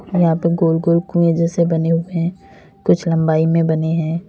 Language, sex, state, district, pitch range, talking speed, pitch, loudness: Hindi, female, Uttar Pradesh, Lalitpur, 165-170 Hz, 195 wpm, 165 Hz, -17 LUFS